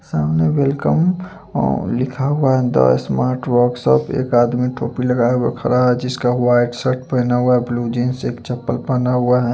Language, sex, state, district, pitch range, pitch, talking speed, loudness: Hindi, male, Chandigarh, Chandigarh, 120-130 Hz, 125 Hz, 180 wpm, -17 LUFS